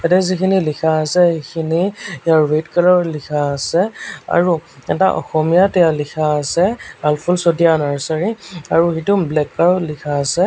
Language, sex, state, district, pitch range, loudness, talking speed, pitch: Assamese, male, Assam, Sonitpur, 155-180 Hz, -16 LUFS, 150 wpm, 165 Hz